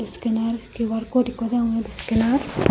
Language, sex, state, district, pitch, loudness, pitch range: Chakma, female, Tripura, Unakoti, 230 Hz, -23 LUFS, 225-240 Hz